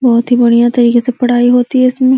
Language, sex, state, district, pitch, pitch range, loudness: Hindi, female, Uttar Pradesh, Deoria, 245 Hz, 240-250 Hz, -10 LUFS